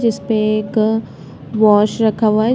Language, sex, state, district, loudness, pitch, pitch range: Hindi, female, Chhattisgarh, Bastar, -15 LUFS, 215 Hz, 215-220 Hz